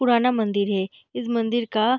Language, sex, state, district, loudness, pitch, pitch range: Hindi, female, Bihar, Darbhanga, -23 LUFS, 230 Hz, 205-240 Hz